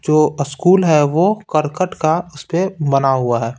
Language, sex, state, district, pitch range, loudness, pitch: Hindi, male, Bihar, Patna, 140-180 Hz, -16 LUFS, 155 Hz